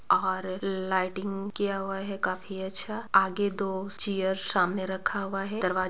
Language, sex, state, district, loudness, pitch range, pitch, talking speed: Hindi, female, Bihar, Bhagalpur, -29 LUFS, 190-200 Hz, 195 Hz, 155 wpm